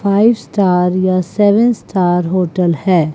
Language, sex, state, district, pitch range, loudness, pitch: Hindi, female, Chandigarh, Chandigarh, 180-205 Hz, -13 LUFS, 185 Hz